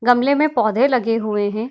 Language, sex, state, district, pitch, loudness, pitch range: Hindi, female, Bihar, Darbhanga, 235 Hz, -18 LUFS, 220-260 Hz